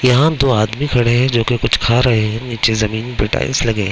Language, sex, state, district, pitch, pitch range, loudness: Hindi, male, Bihar, Begusarai, 120 Hz, 110-125 Hz, -15 LUFS